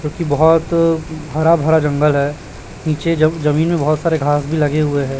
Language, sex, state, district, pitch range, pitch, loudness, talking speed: Hindi, male, Chhattisgarh, Raipur, 150-165 Hz, 155 Hz, -16 LUFS, 195 wpm